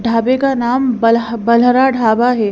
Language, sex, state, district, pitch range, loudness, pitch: Hindi, female, Haryana, Rohtak, 230-255 Hz, -13 LUFS, 235 Hz